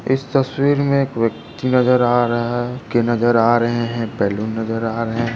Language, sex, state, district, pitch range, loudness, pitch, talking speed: Hindi, male, Maharashtra, Dhule, 115-125 Hz, -18 LUFS, 120 Hz, 215 wpm